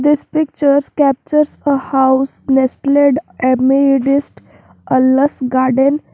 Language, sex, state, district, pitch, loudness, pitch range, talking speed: English, female, Jharkhand, Garhwa, 275 Hz, -14 LUFS, 265-285 Hz, 90 wpm